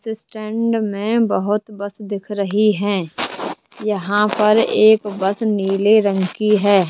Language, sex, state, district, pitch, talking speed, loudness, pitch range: Hindi, male, Rajasthan, Jaipur, 210 Hz, 130 wpm, -18 LUFS, 200-215 Hz